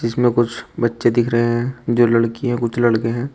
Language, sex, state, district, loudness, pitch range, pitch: Hindi, male, Uttar Pradesh, Shamli, -18 LUFS, 115-120 Hz, 120 Hz